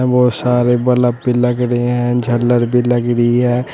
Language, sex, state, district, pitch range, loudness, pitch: Hindi, male, Uttar Pradesh, Shamli, 120-125 Hz, -14 LUFS, 120 Hz